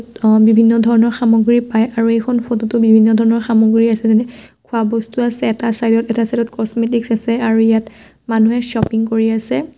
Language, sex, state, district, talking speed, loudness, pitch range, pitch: Assamese, female, Assam, Kamrup Metropolitan, 185 wpm, -14 LUFS, 225-235 Hz, 230 Hz